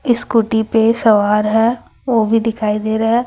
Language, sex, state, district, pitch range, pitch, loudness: Hindi, female, Chhattisgarh, Raipur, 220-230 Hz, 225 Hz, -15 LUFS